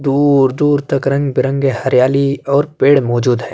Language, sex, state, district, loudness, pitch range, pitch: Urdu, male, Uttar Pradesh, Budaun, -14 LUFS, 130-140 Hz, 135 Hz